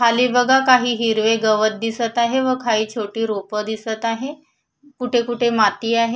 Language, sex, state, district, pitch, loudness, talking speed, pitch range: Marathi, female, Maharashtra, Solapur, 230 Hz, -18 LUFS, 165 wpm, 220-250 Hz